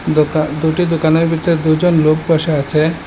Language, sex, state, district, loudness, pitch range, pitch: Bengali, male, Assam, Hailakandi, -14 LUFS, 155-165 Hz, 160 Hz